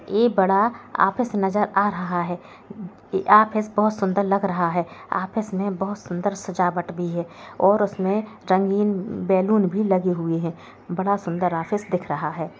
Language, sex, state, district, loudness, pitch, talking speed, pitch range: Hindi, female, Bihar, Gopalganj, -22 LUFS, 195 Hz, 160 wpm, 180-205 Hz